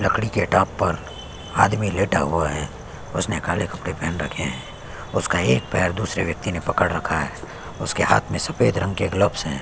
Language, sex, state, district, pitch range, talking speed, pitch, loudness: Hindi, male, Chhattisgarh, Sukma, 80-100 Hz, 195 wpm, 90 Hz, -22 LUFS